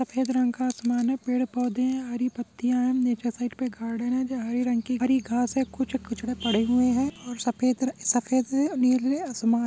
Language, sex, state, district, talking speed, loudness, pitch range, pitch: Hindi, male, Jharkhand, Jamtara, 225 wpm, -26 LUFS, 240-255 Hz, 250 Hz